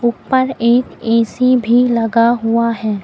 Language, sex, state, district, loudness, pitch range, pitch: Hindi, female, Uttar Pradesh, Lucknow, -14 LUFS, 230-245 Hz, 235 Hz